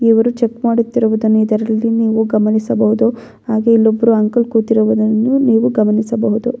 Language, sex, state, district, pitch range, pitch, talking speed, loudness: Kannada, female, Karnataka, Bellary, 220-230 Hz, 225 Hz, 110 wpm, -14 LUFS